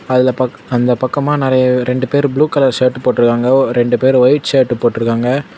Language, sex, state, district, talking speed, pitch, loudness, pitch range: Tamil, male, Tamil Nadu, Kanyakumari, 170 wpm, 130 Hz, -13 LUFS, 120-135 Hz